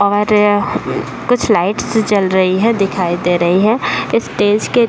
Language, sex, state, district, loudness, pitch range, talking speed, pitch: Hindi, female, Uttar Pradesh, Deoria, -14 LUFS, 190-215 Hz, 170 wpm, 205 Hz